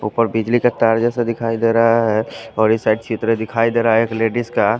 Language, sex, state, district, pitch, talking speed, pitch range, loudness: Hindi, male, Punjab, Fazilka, 115 Hz, 250 wpm, 110-115 Hz, -17 LUFS